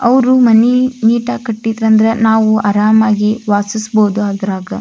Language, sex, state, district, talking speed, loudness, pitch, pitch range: Kannada, female, Karnataka, Belgaum, 110 wpm, -12 LUFS, 220 Hz, 210-235 Hz